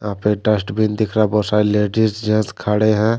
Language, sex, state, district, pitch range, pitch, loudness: Hindi, male, Jharkhand, Deoghar, 105-110 Hz, 105 Hz, -17 LUFS